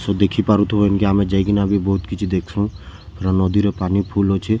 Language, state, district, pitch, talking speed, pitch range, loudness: Sambalpuri, Odisha, Sambalpur, 100 Hz, 235 wpm, 95-100 Hz, -18 LUFS